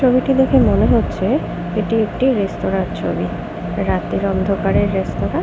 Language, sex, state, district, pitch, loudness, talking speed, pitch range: Bengali, female, West Bengal, Kolkata, 210 Hz, -18 LUFS, 135 wpm, 195-255 Hz